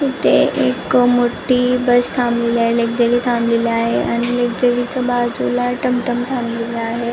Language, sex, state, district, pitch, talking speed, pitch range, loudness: Marathi, female, Maharashtra, Nagpur, 245 Hz, 135 wpm, 235-245 Hz, -16 LUFS